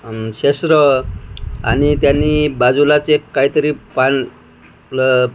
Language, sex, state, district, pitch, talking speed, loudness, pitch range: Marathi, male, Maharashtra, Washim, 130 Hz, 125 wpm, -14 LUFS, 110-145 Hz